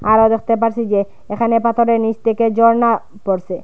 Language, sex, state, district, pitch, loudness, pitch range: Bengali, female, Assam, Hailakandi, 225 Hz, -16 LUFS, 210-230 Hz